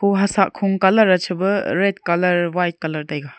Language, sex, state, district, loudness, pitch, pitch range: Wancho, female, Arunachal Pradesh, Longding, -18 LUFS, 185 Hz, 170-195 Hz